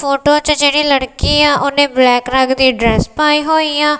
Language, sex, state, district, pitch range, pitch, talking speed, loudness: Punjabi, female, Punjab, Kapurthala, 260-300 Hz, 285 Hz, 195 wpm, -12 LUFS